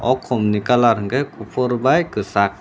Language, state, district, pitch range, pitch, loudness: Kokborok, Tripura, Dhalai, 105-130 Hz, 120 Hz, -18 LUFS